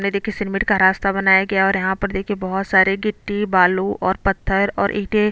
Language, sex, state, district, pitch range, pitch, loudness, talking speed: Hindi, female, Chhattisgarh, Bastar, 190-205 Hz, 195 Hz, -18 LUFS, 225 wpm